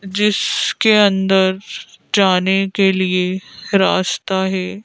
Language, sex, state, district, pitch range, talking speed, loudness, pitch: Hindi, female, Madhya Pradesh, Bhopal, 185-200 Hz, 85 wpm, -16 LUFS, 190 Hz